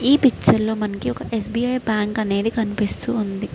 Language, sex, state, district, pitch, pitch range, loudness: Telugu, female, Andhra Pradesh, Srikakulam, 220 Hz, 210-230 Hz, -21 LUFS